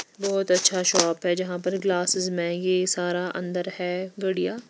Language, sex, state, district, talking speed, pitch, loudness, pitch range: Hindi, female, Bihar, West Champaran, 155 wpm, 180 Hz, -24 LUFS, 180-190 Hz